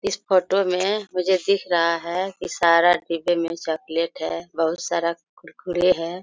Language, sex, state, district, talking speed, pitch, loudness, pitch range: Hindi, female, Jharkhand, Sahebganj, 165 wpm, 175 Hz, -22 LUFS, 170-185 Hz